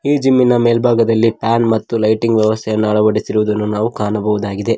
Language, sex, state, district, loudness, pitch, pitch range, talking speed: Kannada, male, Karnataka, Koppal, -15 LUFS, 110 Hz, 105-115 Hz, 150 wpm